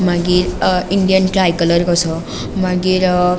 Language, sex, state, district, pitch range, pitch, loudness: Konkani, female, Goa, North and South Goa, 175-185 Hz, 180 Hz, -15 LUFS